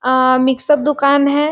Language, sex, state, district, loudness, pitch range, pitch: Hindi, female, Chhattisgarh, Sarguja, -14 LUFS, 255-295 Hz, 280 Hz